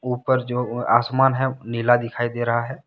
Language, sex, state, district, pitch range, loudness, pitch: Hindi, male, Jharkhand, Deoghar, 120-130 Hz, -21 LUFS, 120 Hz